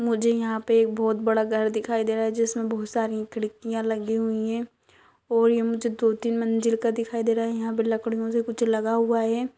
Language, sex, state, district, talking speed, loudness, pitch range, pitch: Hindi, female, Bihar, Lakhisarai, 225 wpm, -25 LUFS, 225-230 Hz, 225 Hz